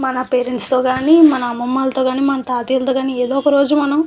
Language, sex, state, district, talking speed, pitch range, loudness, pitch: Telugu, female, Andhra Pradesh, Visakhapatnam, 220 wpm, 255-275 Hz, -15 LUFS, 265 Hz